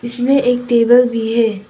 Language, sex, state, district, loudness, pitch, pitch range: Hindi, female, Arunachal Pradesh, Papum Pare, -14 LUFS, 240 Hz, 230-245 Hz